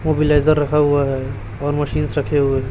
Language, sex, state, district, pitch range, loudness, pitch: Hindi, male, Chhattisgarh, Raipur, 135-150 Hz, -18 LUFS, 145 Hz